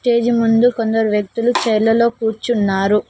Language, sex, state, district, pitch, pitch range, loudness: Telugu, female, Telangana, Mahabubabad, 225 Hz, 215-235 Hz, -16 LUFS